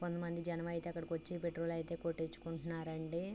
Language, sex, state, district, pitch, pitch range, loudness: Telugu, female, Andhra Pradesh, Srikakulam, 170 Hz, 165-170 Hz, -42 LUFS